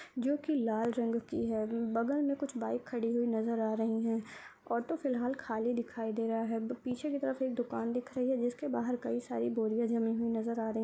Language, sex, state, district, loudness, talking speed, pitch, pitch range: Hindi, male, Uttar Pradesh, Hamirpur, -34 LUFS, 230 wpm, 235 Hz, 225-255 Hz